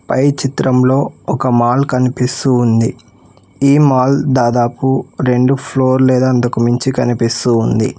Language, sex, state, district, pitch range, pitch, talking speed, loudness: Telugu, male, Telangana, Hyderabad, 120-135 Hz, 125 Hz, 120 wpm, -13 LUFS